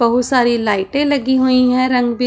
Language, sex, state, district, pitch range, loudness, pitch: Hindi, female, Punjab, Pathankot, 240-260 Hz, -15 LUFS, 250 Hz